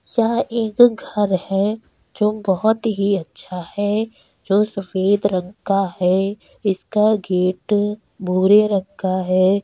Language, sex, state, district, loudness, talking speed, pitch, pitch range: Hindi, female, Uttar Pradesh, Deoria, -19 LUFS, 130 wpm, 200 Hz, 190-210 Hz